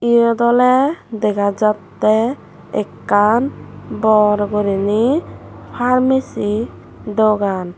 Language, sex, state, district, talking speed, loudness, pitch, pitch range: Chakma, female, Tripura, Dhalai, 70 wpm, -16 LUFS, 215 Hz, 205-240 Hz